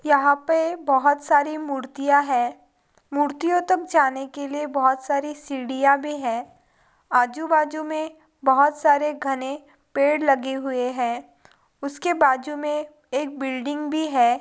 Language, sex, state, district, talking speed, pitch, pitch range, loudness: Hindi, female, Bihar, Gaya, 135 wpm, 285 Hz, 270-300 Hz, -22 LUFS